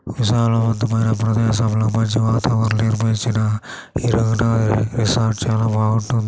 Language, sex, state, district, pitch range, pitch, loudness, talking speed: Telugu, male, Andhra Pradesh, Chittoor, 110-115 Hz, 110 Hz, -18 LUFS, 85 wpm